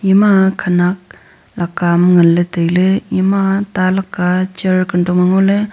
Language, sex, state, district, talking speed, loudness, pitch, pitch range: Wancho, female, Arunachal Pradesh, Longding, 145 wpm, -13 LUFS, 185 Hz, 175-195 Hz